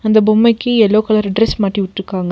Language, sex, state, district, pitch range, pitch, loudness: Tamil, female, Tamil Nadu, Nilgiris, 200-220 Hz, 215 Hz, -14 LUFS